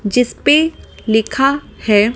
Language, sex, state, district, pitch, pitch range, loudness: Hindi, female, Delhi, New Delhi, 240 Hz, 220-280 Hz, -15 LUFS